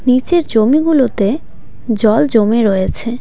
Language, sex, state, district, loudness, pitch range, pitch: Bengali, female, West Bengal, Cooch Behar, -13 LUFS, 220-285 Hz, 235 Hz